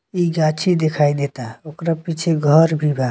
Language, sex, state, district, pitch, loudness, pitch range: Bhojpuri, male, Bihar, Muzaffarpur, 155 Hz, -18 LUFS, 145-165 Hz